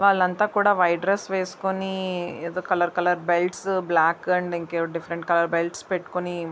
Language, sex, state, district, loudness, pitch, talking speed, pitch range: Telugu, female, Andhra Pradesh, Visakhapatnam, -24 LUFS, 180 Hz, 140 wpm, 170-190 Hz